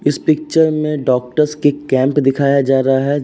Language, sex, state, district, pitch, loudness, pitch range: Hindi, male, Uttar Pradesh, Jyotiba Phule Nagar, 145 Hz, -15 LUFS, 135-150 Hz